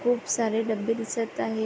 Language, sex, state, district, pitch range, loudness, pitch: Marathi, female, Maharashtra, Pune, 220-230 Hz, -27 LUFS, 225 Hz